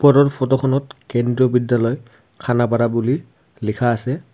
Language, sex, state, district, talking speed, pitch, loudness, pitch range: Assamese, male, Assam, Kamrup Metropolitan, 125 wpm, 125 Hz, -19 LUFS, 120-135 Hz